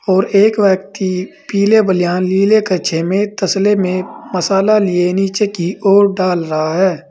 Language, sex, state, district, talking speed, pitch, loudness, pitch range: Hindi, male, Uttar Pradesh, Saharanpur, 150 wpm, 190 Hz, -14 LUFS, 185-200 Hz